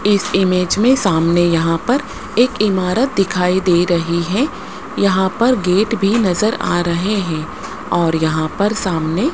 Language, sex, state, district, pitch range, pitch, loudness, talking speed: Hindi, female, Rajasthan, Jaipur, 175-215 Hz, 190 Hz, -16 LUFS, 155 wpm